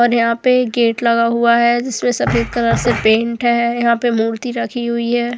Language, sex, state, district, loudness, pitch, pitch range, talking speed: Hindi, female, Goa, North and South Goa, -15 LUFS, 235 Hz, 225-240 Hz, 210 wpm